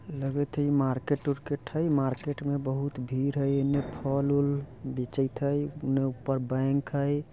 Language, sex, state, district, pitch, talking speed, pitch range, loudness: Bajjika, male, Bihar, Vaishali, 140 Hz, 165 wpm, 135-145 Hz, -29 LUFS